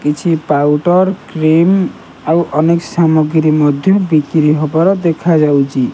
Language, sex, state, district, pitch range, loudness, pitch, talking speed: Odia, male, Odisha, Nuapada, 150-170 Hz, -12 LUFS, 160 Hz, 110 wpm